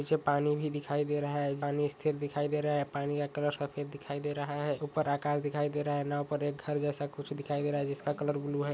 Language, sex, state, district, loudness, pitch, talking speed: Hindi, male, Jharkhand, Jamtara, -33 LUFS, 145 Hz, 280 wpm